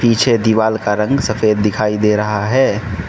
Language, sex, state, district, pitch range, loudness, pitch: Hindi, male, Manipur, Imphal West, 105-115 Hz, -15 LUFS, 110 Hz